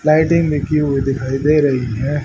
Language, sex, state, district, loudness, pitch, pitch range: Hindi, male, Haryana, Rohtak, -16 LUFS, 145 Hz, 135-155 Hz